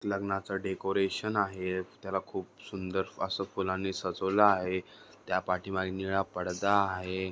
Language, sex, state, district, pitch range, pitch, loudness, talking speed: Marathi, male, Maharashtra, Dhule, 95-100 Hz, 95 Hz, -32 LUFS, 115 wpm